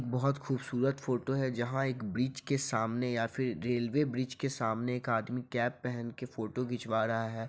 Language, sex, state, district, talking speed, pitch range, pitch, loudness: Hindi, male, Bihar, Sitamarhi, 190 wpm, 115-130 Hz, 125 Hz, -34 LUFS